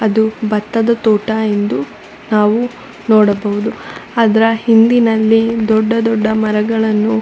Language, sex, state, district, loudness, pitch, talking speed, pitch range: Kannada, female, Karnataka, Shimoga, -14 LUFS, 220 Hz, 90 wpm, 215-225 Hz